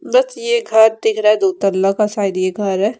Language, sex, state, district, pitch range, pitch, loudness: Hindi, female, Odisha, Malkangiri, 195-225 Hz, 210 Hz, -15 LUFS